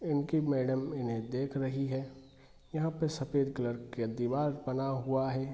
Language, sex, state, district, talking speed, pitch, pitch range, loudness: Hindi, male, Bihar, East Champaran, 185 wpm, 135 Hz, 130-140 Hz, -34 LUFS